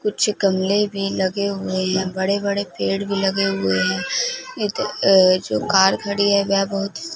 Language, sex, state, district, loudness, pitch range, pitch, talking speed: Hindi, female, Punjab, Fazilka, -19 LUFS, 190-200 Hz, 195 Hz, 185 wpm